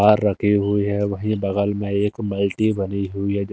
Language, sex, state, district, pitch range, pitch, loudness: Hindi, male, Delhi, New Delhi, 100-105 Hz, 100 Hz, -21 LUFS